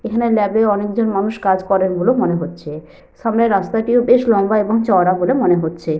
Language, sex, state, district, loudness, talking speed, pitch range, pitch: Bengali, female, Jharkhand, Sahebganj, -16 LUFS, 190 wpm, 180-225 Hz, 200 Hz